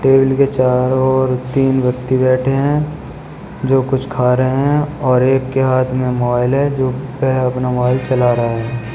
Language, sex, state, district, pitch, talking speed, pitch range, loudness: Hindi, male, Uttar Pradesh, Shamli, 130 Hz, 180 wpm, 125-135 Hz, -15 LUFS